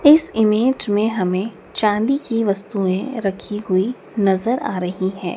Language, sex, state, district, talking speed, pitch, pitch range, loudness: Hindi, female, Madhya Pradesh, Dhar, 145 wpm, 210 Hz, 190-230 Hz, -19 LUFS